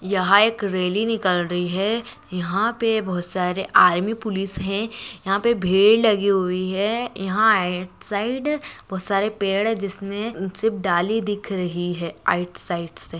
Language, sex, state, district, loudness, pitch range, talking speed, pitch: Hindi, female, West Bengal, Malda, -21 LUFS, 185-220 Hz, 160 wpm, 195 Hz